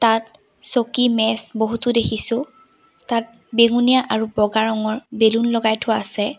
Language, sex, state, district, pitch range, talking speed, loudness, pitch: Assamese, female, Assam, Sonitpur, 220-245 Hz, 130 wpm, -19 LUFS, 230 Hz